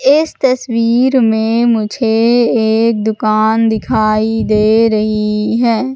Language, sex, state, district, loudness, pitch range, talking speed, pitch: Hindi, female, Madhya Pradesh, Katni, -12 LUFS, 215-235 Hz, 100 wpm, 225 Hz